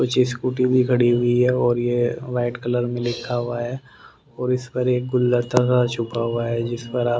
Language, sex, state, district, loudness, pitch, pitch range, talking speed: Hindi, male, Haryana, Rohtak, -21 LUFS, 120 Hz, 120-125 Hz, 215 wpm